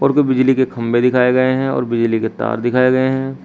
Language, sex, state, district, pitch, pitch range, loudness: Hindi, male, Uttar Pradesh, Shamli, 130 Hz, 120-130 Hz, -15 LUFS